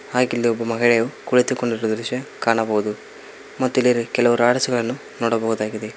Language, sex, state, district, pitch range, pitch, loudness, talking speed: Kannada, male, Karnataka, Koppal, 115-125 Hz, 120 Hz, -20 LUFS, 130 wpm